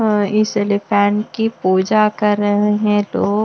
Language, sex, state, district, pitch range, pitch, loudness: Hindi, female, Bihar, West Champaran, 205-215 Hz, 210 Hz, -16 LUFS